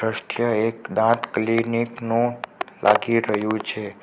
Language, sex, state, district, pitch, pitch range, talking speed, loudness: Gujarati, male, Gujarat, Navsari, 115 Hz, 110-115 Hz, 105 wpm, -22 LUFS